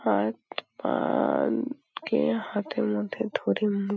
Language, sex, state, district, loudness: Bengali, female, West Bengal, Paschim Medinipur, -28 LUFS